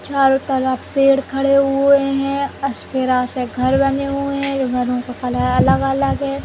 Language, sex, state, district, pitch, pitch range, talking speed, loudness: Hindi, female, Uttar Pradesh, Jalaun, 275 Hz, 260-275 Hz, 160 wpm, -17 LUFS